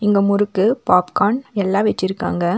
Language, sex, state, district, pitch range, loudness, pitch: Tamil, female, Tamil Nadu, Nilgiris, 190-215 Hz, -18 LUFS, 205 Hz